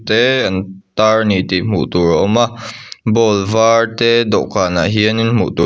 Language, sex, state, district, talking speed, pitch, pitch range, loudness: Mizo, male, Mizoram, Aizawl, 200 wpm, 110 Hz, 100-115 Hz, -14 LUFS